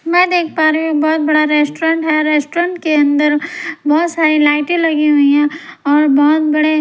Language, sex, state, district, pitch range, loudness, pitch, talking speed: Hindi, female, Punjab, Pathankot, 295-325 Hz, -13 LUFS, 310 Hz, 185 wpm